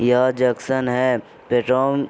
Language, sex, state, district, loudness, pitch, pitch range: Hindi, male, Bihar, Vaishali, -20 LUFS, 125 Hz, 125-130 Hz